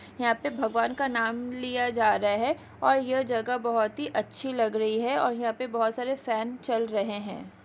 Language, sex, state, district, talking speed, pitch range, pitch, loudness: Hindi, female, Chhattisgarh, Kabirdham, 210 wpm, 225-250 Hz, 235 Hz, -28 LUFS